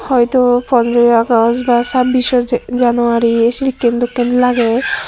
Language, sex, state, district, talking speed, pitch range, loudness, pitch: Chakma, female, Tripura, Dhalai, 105 wpm, 235-250 Hz, -13 LUFS, 245 Hz